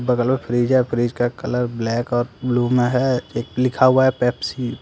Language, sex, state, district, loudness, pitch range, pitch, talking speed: Hindi, male, Jharkhand, Deoghar, -19 LUFS, 120-130 Hz, 125 Hz, 225 wpm